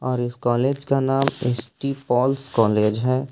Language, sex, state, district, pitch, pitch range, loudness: Hindi, male, Jharkhand, Ranchi, 125 Hz, 120-135 Hz, -22 LUFS